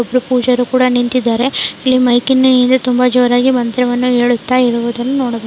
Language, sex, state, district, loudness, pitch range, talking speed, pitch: Kannada, female, Karnataka, Dharwad, -13 LUFS, 245-255 Hz, 130 wpm, 250 Hz